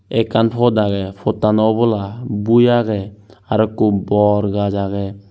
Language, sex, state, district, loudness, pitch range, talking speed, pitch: Chakma, male, Tripura, Unakoti, -16 LUFS, 100-115 Hz, 135 wpm, 105 Hz